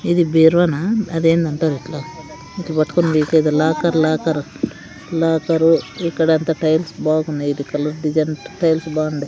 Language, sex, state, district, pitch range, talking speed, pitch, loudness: Telugu, female, Andhra Pradesh, Sri Satya Sai, 155-165 Hz, 125 wpm, 160 Hz, -18 LUFS